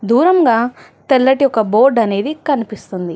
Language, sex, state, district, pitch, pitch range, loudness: Telugu, female, Telangana, Hyderabad, 235 Hz, 215-275 Hz, -14 LUFS